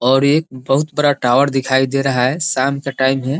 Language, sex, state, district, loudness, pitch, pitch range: Hindi, male, Bihar, East Champaran, -16 LUFS, 135 Hz, 130-140 Hz